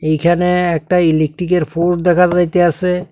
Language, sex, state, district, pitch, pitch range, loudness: Bengali, male, Tripura, South Tripura, 175 Hz, 165-180 Hz, -14 LUFS